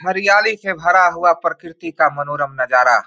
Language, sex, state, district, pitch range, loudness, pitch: Hindi, male, Bihar, Samastipur, 145-185 Hz, -16 LUFS, 170 Hz